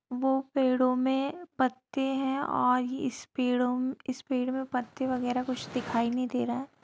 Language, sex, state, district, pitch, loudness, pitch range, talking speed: Hindi, female, Bihar, Sitamarhi, 255 Hz, -30 LUFS, 250-265 Hz, 160 wpm